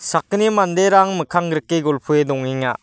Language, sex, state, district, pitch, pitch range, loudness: Garo, male, Meghalaya, West Garo Hills, 165 Hz, 150-190 Hz, -17 LUFS